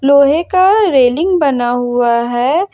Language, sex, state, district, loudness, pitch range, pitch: Hindi, female, Jharkhand, Ranchi, -12 LUFS, 245-350 Hz, 280 Hz